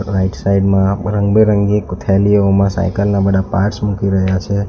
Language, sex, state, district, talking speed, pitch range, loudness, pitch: Gujarati, male, Gujarat, Valsad, 155 wpm, 95-100 Hz, -14 LUFS, 100 Hz